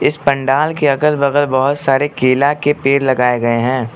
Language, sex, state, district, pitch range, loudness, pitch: Hindi, male, Arunachal Pradesh, Lower Dibang Valley, 130-145 Hz, -14 LUFS, 140 Hz